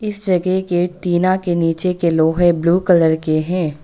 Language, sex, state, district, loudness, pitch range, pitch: Hindi, female, Arunachal Pradesh, Longding, -16 LUFS, 165-185 Hz, 175 Hz